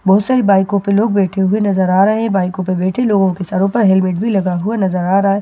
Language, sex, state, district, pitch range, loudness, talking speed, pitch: Hindi, female, Bihar, Katihar, 185-205 Hz, -14 LUFS, 310 wpm, 195 Hz